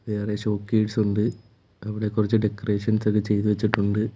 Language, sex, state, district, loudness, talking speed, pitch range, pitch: Malayalam, male, Kerala, Kollam, -24 LUFS, 130 wpm, 105-110 Hz, 105 Hz